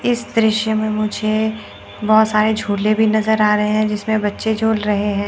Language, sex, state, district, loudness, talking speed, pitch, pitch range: Hindi, female, Chandigarh, Chandigarh, -17 LUFS, 195 wpm, 215 Hz, 210-220 Hz